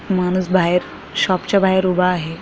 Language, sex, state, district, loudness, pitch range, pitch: Marathi, female, Maharashtra, Chandrapur, -17 LUFS, 180-190 Hz, 185 Hz